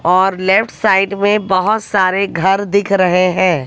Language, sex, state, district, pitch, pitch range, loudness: Hindi, female, Haryana, Jhajjar, 190 Hz, 185-200 Hz, -14 LUFS